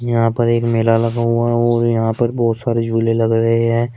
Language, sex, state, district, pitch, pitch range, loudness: Hindi, male, Uttar Pradesh, Shamli, 115 Hz, 115-120 Hz, -16 LUFS